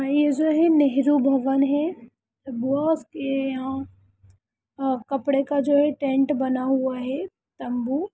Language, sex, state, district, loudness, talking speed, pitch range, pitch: Hindi, female, Bihar, Sitamarhi, -23 LUFS, 145 wpm, 260-290 Hz, 275 Hz